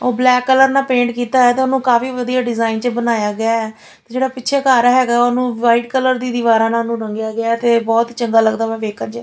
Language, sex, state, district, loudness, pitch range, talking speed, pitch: Punjabi, female, Punjab, Fazilka, -15 LUFS, 230-250 Hz, 240 wpm, 240 Hz